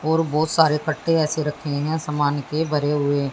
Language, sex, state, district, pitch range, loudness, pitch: Hindi, female, Haryana, Jhajjar, 145-160 Hz, -21 LUFS, 150 Hz